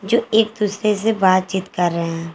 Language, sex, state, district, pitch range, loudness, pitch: Hindi, female, Jharkhand, Garhwa, 180-215 Hz, -18 LUFS, 200 Hz